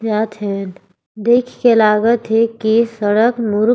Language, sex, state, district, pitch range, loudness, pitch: Sadri, female, Chhattisgarh, Jashpur, 210-235 Hz, -15 LUFS, 220 Hz